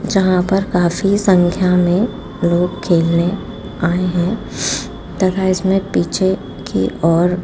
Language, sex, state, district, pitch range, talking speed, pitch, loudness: Hindi, female, Rajasthan, Jaipur, 175-195 Hz, 120 wpm, 185 Hz, -16 LUFS